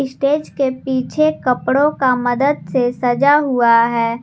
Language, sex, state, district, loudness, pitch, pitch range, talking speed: Hindi, female, Jharkhand, Garhwa, -16 LUFS, 260 Hz, 245-285 Hz, 140 wpm